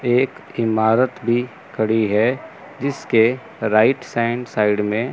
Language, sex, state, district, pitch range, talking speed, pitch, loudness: Hindi, male, Chandigarh, Chandigarh, 110-125 Hz, 115 wpm, 115 Hz, -19 LUFS